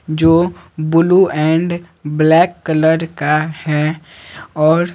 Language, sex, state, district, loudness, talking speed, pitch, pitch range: Hindi, male, Bihar, Patna, -15 LUFS, 95 wpm, 160 Hz, 155-170 Hz